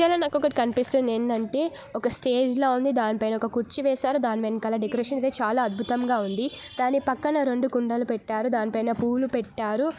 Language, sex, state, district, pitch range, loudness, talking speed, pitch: Telugu, female, Telangana, Nalgonda, 230-270 Hz, -25 LUFS, 170 wpm, 245 Hz